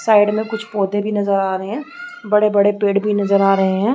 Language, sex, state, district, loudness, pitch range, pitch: Hindi, female, Chhattisgarh, Rajnandgaon, -17 LUFS, 200-215 Hz, 205 Hz